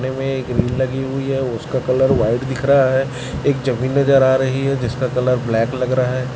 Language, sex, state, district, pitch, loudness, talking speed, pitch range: Hindi, male, Chhattisgarh, Raipur, 130 Hz, -18 LUFS, 225 wpm, 125-135 Hz